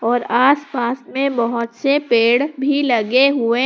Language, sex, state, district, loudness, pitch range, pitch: Hindi, female, Jharkhand, Palamu, -17 LUFS, 235-275 Hz, 250 Hz